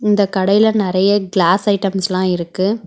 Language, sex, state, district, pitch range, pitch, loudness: Tamil, female, Tamil Nadu, Chennai, 190-205 Hz, 195 Hz, -15 LUFS